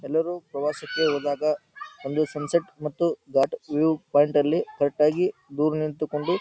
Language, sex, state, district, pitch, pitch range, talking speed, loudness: Kannada, male, Karnataka, Dharwad, 155 Hz, 145-165 Hz, 140 wpm, -25 LUFS